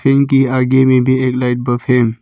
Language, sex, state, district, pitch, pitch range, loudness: Hindi, male, Arunachal Pradesh, Papum Pare, 130 Hz, 125-130 Hz, -13 LUFS